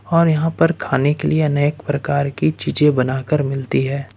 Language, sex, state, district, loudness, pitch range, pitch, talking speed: Hindi, male, Jharkhand, Ranchi, -18 LUFS, 140-160 Hz, 145 Hz, 200 wpm